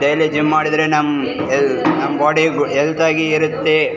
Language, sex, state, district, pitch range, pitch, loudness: Kannada, male, Karnataka, Raichur, 150-160 Hz, 155 Hz, -16 LUFS